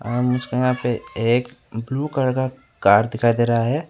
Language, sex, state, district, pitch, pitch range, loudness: Hindi, male, West Bengal, Alipurduar, 120 Hz, 115-130 Hz, -20 LUFS